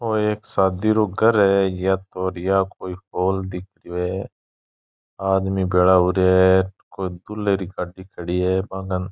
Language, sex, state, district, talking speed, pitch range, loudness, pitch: Rajasthani, male, Rajasthan, Churu, 170 wpm, 90-95 Hz, -21 LUFS, 95 Hz